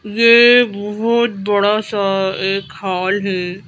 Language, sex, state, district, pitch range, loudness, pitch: Hindi, female, Madhya Pradesh, Bhopal, 190-215 Hz, -15 LUFS, 200 Hz